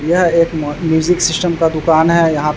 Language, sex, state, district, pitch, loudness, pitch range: Hindi, male, Bihar, Vaishali, 165 Hz, -14 LUFS, 160-170 Hz